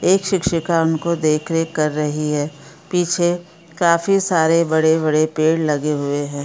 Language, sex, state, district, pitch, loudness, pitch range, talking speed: Hindi, female, Bihar, Gaya, 160 Hz, -18 LUFS, 155-170 Hz, 150 wpm